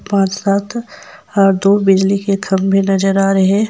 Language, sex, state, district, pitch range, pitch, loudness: Hindi, female, Jharkhand, Ranchi, 195-205 Hz, 195 Hz, -14 LUFS